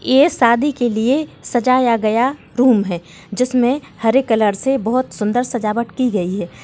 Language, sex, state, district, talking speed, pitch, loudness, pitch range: Hindi, female, Bihar, Gopalganj, 165 wpm, 240 Hz, -17 LUFS, 215-255 Hz